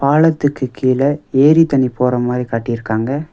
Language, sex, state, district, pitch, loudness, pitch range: Tamil, male, Tamil Nadu, Nilgiris, 130 Hz, -15 LUFS, 125-145 Hz